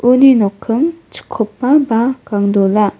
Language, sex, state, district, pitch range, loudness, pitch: Garo, female, Meghalaya, West Garo Hills, 210-265 Hz, -13 LUFS, 235 Hz